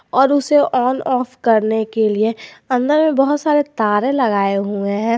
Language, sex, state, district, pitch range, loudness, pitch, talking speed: Hindi, male, Jharkhand, Garhwa, 215-275 Hz, -16 LUFS, 250 Hz, 175 wpm